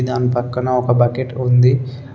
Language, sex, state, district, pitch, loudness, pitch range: Telugu, male, Telangana, Adilabad, 125 Hz, -16 LUFS, 125-130 Hz